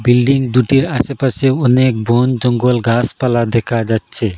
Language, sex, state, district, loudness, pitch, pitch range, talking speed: Bengali, male, Assam, Hailakandi, -14 LUFS, 125 Hz, 115-130 Hz, 110 wpm